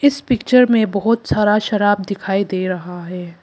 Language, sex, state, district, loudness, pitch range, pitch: Hindi, female, Arunachal Pradesh, Papum Pare, -17 LUFS, 185-230 Hz, 205 Hz